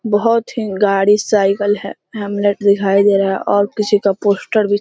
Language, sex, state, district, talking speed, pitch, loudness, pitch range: Hindi, female, Bihar, East Champaran, 185 wpm, 205 Hz, -15 LUFS, 200-210 Hz